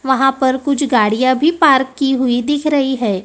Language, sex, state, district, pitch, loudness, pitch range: Hindi, female, Maharashtra, Gondia, 265 Hz, -14 LUFS, 255-280 Hz